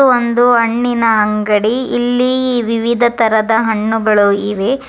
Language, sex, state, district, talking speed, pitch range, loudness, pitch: Kannada, male, Karnataka, Dharwad, 100 wpm, 215-245 Hz, -13 LUFS, 230 Hz